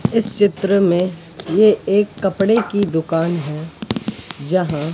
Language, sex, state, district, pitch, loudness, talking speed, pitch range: Hindi, male, Madhya Pradesh, Katni, 185 Hz, -17 LUFS, 120 wpm, 165-205 Hz